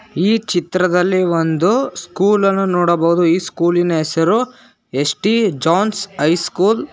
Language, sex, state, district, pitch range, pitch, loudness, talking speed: Kannada, male, Karnataka, Bangalore, 170-205 Hz, 180 Hz, -16 LUFS, 120 wpm